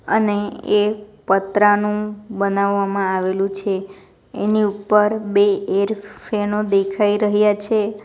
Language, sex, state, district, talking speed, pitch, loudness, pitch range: Gujarati, female, Gujarat, Valsad, 105 wpm, 205 Hz, -19 LUFS, 200-210 Hz